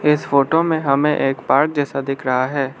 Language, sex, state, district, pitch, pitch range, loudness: Hindi, male, Arunachal Pradesh, Lower Dibang Valley, 140 Hz, 135-150 Hz, -18 LUFS